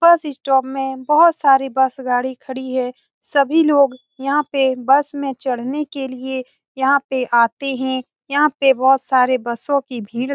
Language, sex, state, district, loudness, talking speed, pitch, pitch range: Hindi, female, Bihar, Saran, -18 LUFS, 175 wpm, 265 Hz, 255-280 Hz